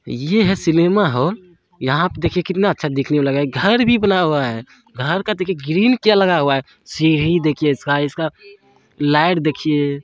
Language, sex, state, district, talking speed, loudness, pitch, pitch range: Hindi, male, Bihar, Saharsa, 205 wpm, -17 LUFS, 160 Hz, 145-190 Hz